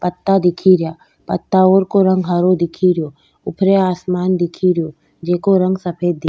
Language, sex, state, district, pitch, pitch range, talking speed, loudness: Rajasthani, female, Rajasthan, Nagaur, 180 Hz, 175-185 Hz, 160 wpm, -15 LUFS